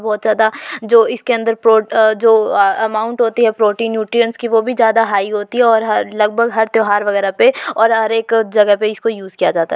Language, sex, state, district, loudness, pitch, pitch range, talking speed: Hindi, female, Uttar Pradesh, Varanasi, -14 LUFS, 220 Hz, 215-230 Hz, 235 wpm